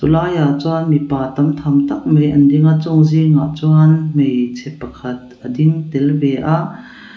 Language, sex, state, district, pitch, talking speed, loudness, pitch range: Mizo, female, Mizoram, Aizawl, 150 Hz, 170 wpm, -14 LUFS, 140-160 Hz